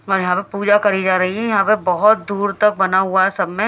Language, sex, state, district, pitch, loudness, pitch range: Hindi, female, Haryana, Charkhi Dadri, 195 Hz, -16 LUFS, 190-205 Hz